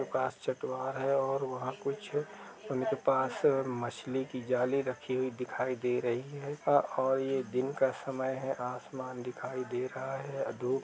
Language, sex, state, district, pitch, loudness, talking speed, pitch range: Hindi, male, Uttar Pradesh, Jalaun, 130 Hz, -33 LUFS, 165 wpm, 125-135 Hz